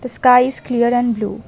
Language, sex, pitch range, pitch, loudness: English, female, 235-250 Hz, 245 Hz, -15 LUFS